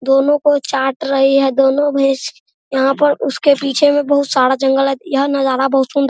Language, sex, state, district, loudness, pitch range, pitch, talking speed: Hindi, male, Bihar, Araria, -14 LUFS, 270-285 Hz, 275 Hz, 205 wpm